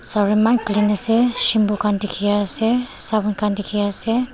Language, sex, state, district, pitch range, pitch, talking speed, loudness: Nagamese, female, Nagaland, Dimapur, 205-225 Hz, 210 Hz, 110 wpm, -17 LUFS